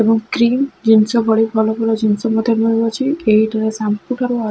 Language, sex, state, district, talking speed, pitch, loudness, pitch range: Odia, female, Odisha, Khordha, 175 wpm, 225 Hz, -16 LUFS, 220-235 Hz